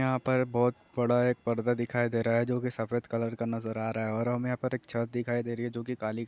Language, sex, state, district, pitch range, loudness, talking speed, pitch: Hindi, male, Telangana, Nalgonda, 115-125 Hz, -30 LUFS, 295 wpm, 120 Hz